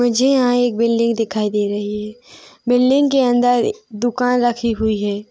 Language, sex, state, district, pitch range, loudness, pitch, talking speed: Hindi, female, Chhattisgarh, Rajnandgaon, 215-245 Hz, -17 LUFS, 235 Hz, 170 wpm